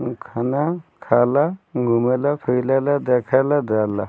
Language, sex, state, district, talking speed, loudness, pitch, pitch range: Bhojpuri, male, Bihar, Muzaffarpur, 90 wpm, -20 LUFS, 130 Hz, 120-145 Hz